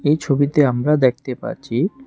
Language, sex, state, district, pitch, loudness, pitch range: Bengali, male, Tripura, West Tripura, 145 Hz, -18 LUFS, 130-150 Hz